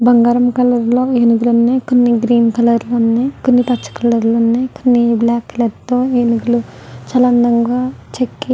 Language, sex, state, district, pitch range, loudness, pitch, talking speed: Telugu, female, Andhra Pradesh, Guntur, 235-250 Hz, -14 LUFS, 240 Hz, 160 wpm